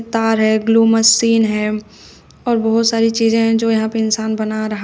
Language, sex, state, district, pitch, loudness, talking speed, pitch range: Hindi, female, Uttar Pradesh, Shamli, 225 Hz, -15 LUFS, 200 wpm, 220-225 Hz